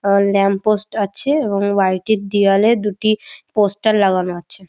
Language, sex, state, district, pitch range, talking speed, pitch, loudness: Bengali, female, West Bengal, Dakshin Dinajpur, 195-215 Hz, 140 wpm, 200 Hz, -17 LUFS